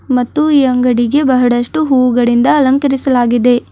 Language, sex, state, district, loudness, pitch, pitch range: Kannada, female, Karnataka, Bidar, -11 LUFS, 255 Hz, 245-280 Hz